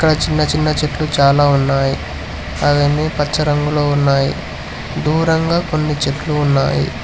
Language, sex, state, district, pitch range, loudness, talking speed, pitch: Telugu, male, Telangana, Hyderabad, 135-155 Hz, -16 LUFS, 110 wpm, 145 Hz